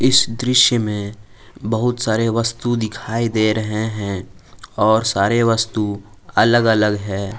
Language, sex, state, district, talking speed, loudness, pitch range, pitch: Hindi, male, Jharkhand, Palamu, 130 wpm, -18 LUFS, 105-115 Hz, 110 Hz